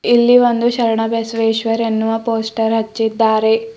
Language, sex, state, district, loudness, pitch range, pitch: Kannada, female, Karnataka, Bidar, -15 LUFS, 225-230 Hz, 225 Hz